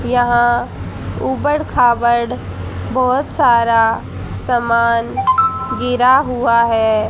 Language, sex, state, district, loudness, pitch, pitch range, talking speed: Hindi, female, Haryana, Jhajjar, -15 LUFS, 240 Hz, 235-260 Hz, 75 wpm